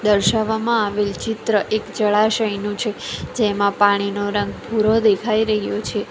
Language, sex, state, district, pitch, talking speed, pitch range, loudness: Gujarati, female, Gujarat, Valsad, 215 Hz, 130 wpm, 205-220 Hz, -19 LUFS